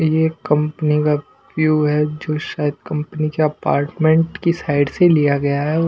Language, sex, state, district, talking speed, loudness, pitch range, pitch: Hindi, male, Punjab, Pathankot, 155 wpm, -18 LUFS, 150-160 Hz, 155 Hz